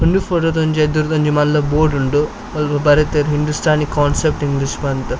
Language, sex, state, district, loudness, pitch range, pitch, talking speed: Tulu, male, Karnataka, Dakshina Kannada, -16 LUFS, 145-155 Hz, 150 Hz, 160 wpm